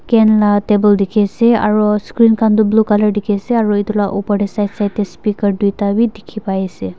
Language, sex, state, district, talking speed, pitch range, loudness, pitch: Nagamese, female, Nagaland, Dimapur, 230 wpm, 205-215 Hz, -14 LUFS, 210 Hz